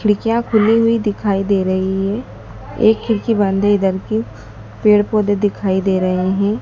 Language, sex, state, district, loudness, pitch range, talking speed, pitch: Hindi, female, Madhya Pradesh, Dhar, -16 LUFS, 190-220 Hz, 170 wpm, 205 Hz